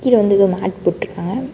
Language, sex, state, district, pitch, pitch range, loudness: Tamil, female, Karnataka, Bangalore, 200 Hz, 190-245 Hz, -17 LUFS